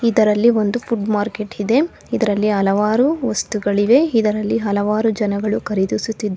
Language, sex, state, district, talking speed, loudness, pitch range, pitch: Kannada, female, Karnataka, Bangalore, 115 wpm, -18 LUFS, 205-230 Hz, 215 Hz